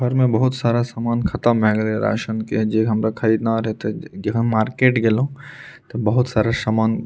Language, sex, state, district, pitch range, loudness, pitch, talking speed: Maithili, male, Bihar, Purnia, 110-120 Hz, -19 LUFS, 115 Hz, 210 wpm